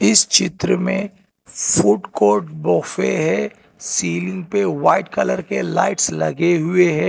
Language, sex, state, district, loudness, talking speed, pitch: Hindi, male, Telangana, Hyderabad, -18 LUFS, 125 wpm, 170 Hz